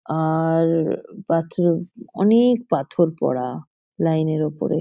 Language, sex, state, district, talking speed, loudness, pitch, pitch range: Bengali, female, West Bengal, North 24 Parganas, 100 wpm, -21 LUFS, 165 Hz, 155-175 Hz